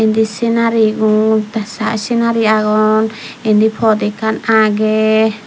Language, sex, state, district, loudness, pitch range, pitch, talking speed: Chakma, female, Tripura, Dhalai, -14 LUFS, 215-225 Hz, 220 Hz, 100 wpm